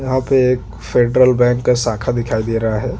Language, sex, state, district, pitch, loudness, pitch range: Hindi, male, Chhattisgarh, Jashpur, 120 Hz, -16 LUFS, 115-125 Hz